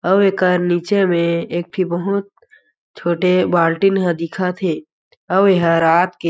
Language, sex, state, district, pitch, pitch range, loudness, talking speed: Chhattisgarhi, male, Chhattisgarh, Jashpur, 180 Hz, 170-195 Hz, -17 LUFS, 180 wpm